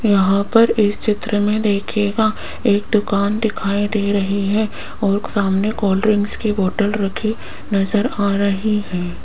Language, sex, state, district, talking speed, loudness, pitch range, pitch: Hindi, female, Rajasthan, Jaipur, 150 wpm, -18 LUFS, 200-215 Hz, 205 Hz